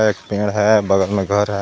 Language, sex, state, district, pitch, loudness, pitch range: Hindi, male, Jharkhand, Garhwa, 105 Hz, -17 LUFS, 100-105 Hz